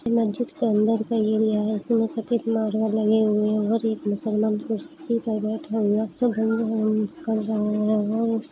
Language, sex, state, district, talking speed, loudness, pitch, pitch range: Hindi, female, Uttar Pradesh, Jalaun, 205 wpm, -24 LUFS, 220 Hz, 215-225 Hz